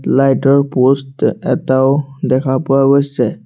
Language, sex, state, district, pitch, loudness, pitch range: Assamese, male, Assam, Sonitpur, 135 Hz, -14 LUFS, 130-140 Hz